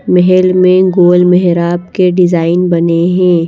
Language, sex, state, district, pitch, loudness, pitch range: Hindi, female, Madhya Pradesh, Bhopal, 180 Hz, -9 LUFS, 175-185 Hz